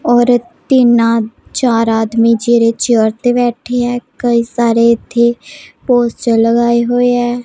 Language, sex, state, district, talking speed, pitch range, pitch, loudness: Punjabi, female, Punjab, Pathankot, 130 wpm, 230-245 Hz, 235 Hz, -12 LUFS